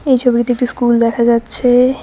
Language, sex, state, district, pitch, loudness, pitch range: Bengali, female, West Bengal, Cooch Behar, 245 Hz, -13 LUFS, 235-250 Hz